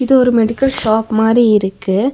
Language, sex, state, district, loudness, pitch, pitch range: Tamil, female, Tamil Nadu, Nilgiris, -13 LUFS, 225 Hz, 220-255 Hz